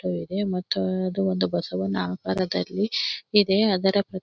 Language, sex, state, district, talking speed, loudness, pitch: Kannada, female, Karnataka, Belgaum, 100 wpm, -24 LUFS, 180 Hz